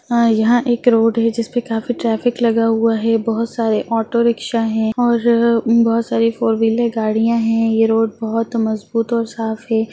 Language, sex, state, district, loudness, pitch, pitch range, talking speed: Hindi, female, Bihar, Jahanabad, -16 LUFS, 230 Hz, 225-235 Hz, 180 wpm